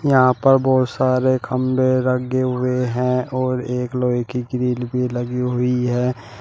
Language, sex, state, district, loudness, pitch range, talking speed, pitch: Hindi, male, Uttar Pradesh, Shamli, -19 LUFS, 125-130 Hz, 160 wpm, 125 Hz